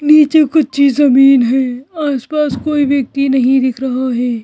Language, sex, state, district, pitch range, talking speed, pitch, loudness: Hindi, female, Madhya Pradesh, Bhopal, 260-295 Hz, 160 wpm, 275 Hz, -12 LUFS